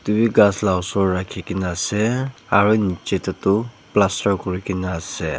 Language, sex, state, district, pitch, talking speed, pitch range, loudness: Nagamese, male, Nagaland, Dimapur, 100 Hz, 180 wpm, 95-105 Hz, -20 LUFS